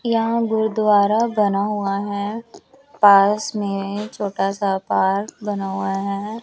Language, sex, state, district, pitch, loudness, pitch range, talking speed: Hindi, female, Chandigarh, Chandigarh, 205 Hz, -20 LUFS, 200-220 Hz, 120 wpm